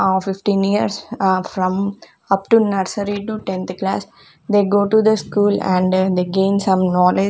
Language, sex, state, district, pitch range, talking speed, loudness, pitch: English, female, Chandigarh, Chandigarh, 190-205 Hz, 165 wpm, -18 LUFS, 195 Hz